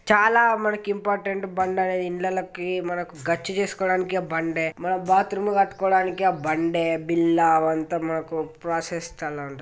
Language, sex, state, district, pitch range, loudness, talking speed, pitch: Telugu, male, Telangana, Karimnagar, 165-190 Hz, -24 LUFS, 130 wpm, 180 Hz